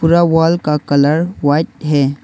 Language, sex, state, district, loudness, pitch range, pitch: Hindi, male, Arunachal Pradesh, Longding, -14 LUFS, 145-165 Hz, 150 Hz